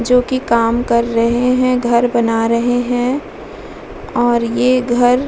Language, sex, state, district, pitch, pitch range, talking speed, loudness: Hindi, female, Bihar, Vaishali, 240 Hz, 235-250 Hz, 160 wpm, -15 LUFS